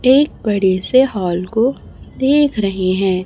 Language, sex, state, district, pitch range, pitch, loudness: Hindi, male, Chhattisgarh, Raipur, 185-260 Hz, 210 Hz, -16 LUFS